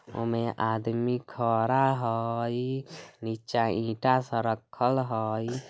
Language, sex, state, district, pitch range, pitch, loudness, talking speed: Bajjika, male, Bihar, Vaishali, 115-125 Hz, 115 Hz, -28 LUFS, 105 wpm